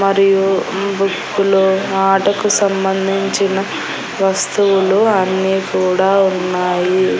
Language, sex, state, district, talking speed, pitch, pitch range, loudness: Telugu, female, Andhra Pradesh, Annamaya, 75 wpm, 195 Hz, 190-195 Hz, -15 LUFS